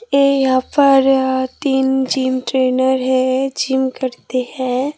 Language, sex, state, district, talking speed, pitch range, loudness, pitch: Hindi, female, Tripura, Dhalai, 120 wpm, 255-270 Hz, -16 LUFS, 260 Hz